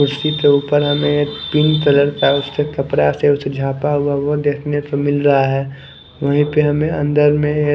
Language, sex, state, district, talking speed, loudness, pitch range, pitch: Hindi, male, Chandigarh, Chandigarh, 200 wpm, -16 LUFS, 140-150 Hz, 145 Hz